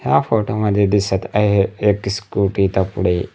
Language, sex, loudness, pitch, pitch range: Marathi, male, -18 LUFS, 100 Hz, 95-105 Hz